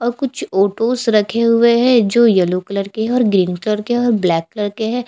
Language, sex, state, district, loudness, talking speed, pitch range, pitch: Hindi, female, Chhattisgarh, Bastar, -15 LUFS, 235 wpm, 200-235 Hz, 225 Hz